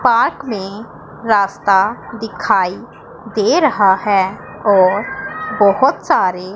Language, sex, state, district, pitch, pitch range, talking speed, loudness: Hindi, female, Punjab, Pathankot, 205 Hz, 195-230 Hz, 90 wpm, -15 LUFS